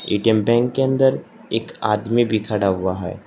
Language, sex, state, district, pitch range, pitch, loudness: Hindi, male, Uttar Pradesh, Saharanpur, 100-120 Hz, 110 Hz, -19 LUFS